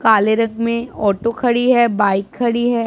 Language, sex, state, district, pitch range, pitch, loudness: Hindi, female, Punjab, Pathankot, 215-240 Hz, 230 Hz, -16 LUFS